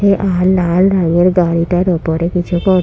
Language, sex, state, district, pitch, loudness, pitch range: Bengali, female, West Bengal, Purulia, 180 Hz, -13 LUFS, 175-185 Hz